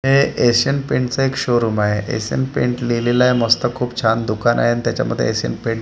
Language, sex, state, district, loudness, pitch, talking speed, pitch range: Marathi, male, Maharashtra, Gondia, -18 LUFS, 120 Hz, 205 wpm, 115-125 Hz